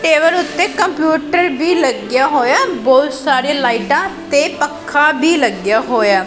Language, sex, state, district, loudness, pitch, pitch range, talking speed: Punjabi, female, Punjab, Pathankot, -14 LUFS, 295 Hz, 255-325 Hz, 145 wpm